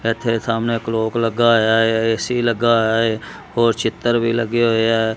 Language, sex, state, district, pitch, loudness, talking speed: Punjabi, male, Punjab, Kapurthala, 115 Hz, -18 LUFS, 195 wpm